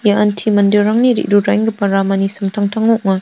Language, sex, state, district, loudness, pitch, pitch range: Garo, female, Meghalaya, North Garo Hills, -14 LUFS, 205 Hz, 200-215 Hz